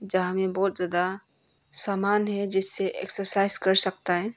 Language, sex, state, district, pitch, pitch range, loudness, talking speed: Hindi, female, Arunachal Pradesh, Longding, 190 Hz, 185-200 Hz, -20 LUFS, 150 wpm